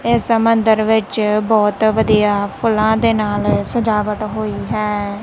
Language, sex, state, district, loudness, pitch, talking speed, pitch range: Punjabi, female, Punjab, Kapurthala, -16 LUFS, 215 Hz, 125 wpm, 210-225 Hz